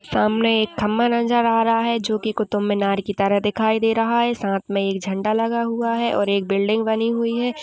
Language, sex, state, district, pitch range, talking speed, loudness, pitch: Hindi, female, Uttar Pradesh, Budaun, 205-230 Hz, 235 wpm, -20 LUFS, 220 Hz